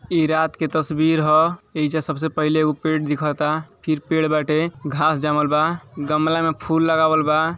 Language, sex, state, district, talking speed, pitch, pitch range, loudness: Bhojpuri, male, Uttar Pradesh, Ghazipur, 175 wpm, 155 Hz, 150-160 Hz, -20 LUFS